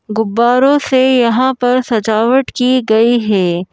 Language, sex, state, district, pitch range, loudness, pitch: Hindi, female, Madhya Pradesh, Bhopal, 220-255 Hz, -12 LUFS, 240 Hz